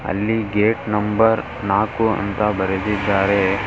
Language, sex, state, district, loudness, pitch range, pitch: Kannada, male, Karnataka, Dharwad, -19 LUFS, 100-110 Hz, 105 Hz